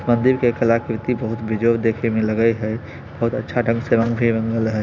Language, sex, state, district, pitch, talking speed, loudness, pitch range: Maithili, male, Bihar, Samastipur, 115 Hz, 175 wpm, -20 LUFS, 110-120 Hz